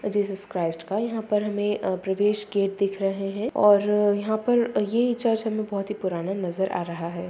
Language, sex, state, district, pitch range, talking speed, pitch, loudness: Hindi, female, Bihar, Madhepura, 190-215 Hz, 205 wpm, 205 Hz, -25 LUFS